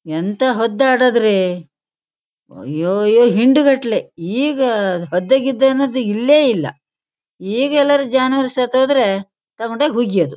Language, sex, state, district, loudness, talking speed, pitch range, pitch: Kannada, female, Karnataka, Shimoga, -15 LUFS, 115 wpm, 195-265 Hz, 240 Hz